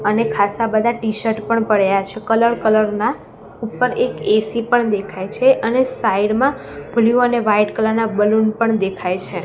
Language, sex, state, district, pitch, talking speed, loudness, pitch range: Gujarati, female, Gujarat, Gandhinagar, 220 Hz, 170 wpm, -17 LUFS, 210-235 Hz